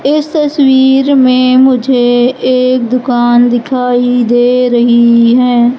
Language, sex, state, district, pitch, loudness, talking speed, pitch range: Hindi, female, Madhya Pradesh, Katni, 250 Hz, -9 LUFS, 105 wpm, 240-260 Hz